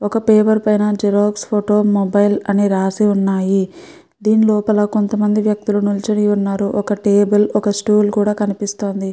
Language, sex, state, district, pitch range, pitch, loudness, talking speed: Telugu, female, Andhra Pradesh, Guntur, 200-210 Hz, 205 Hz, -16 LUFS, 140 wpm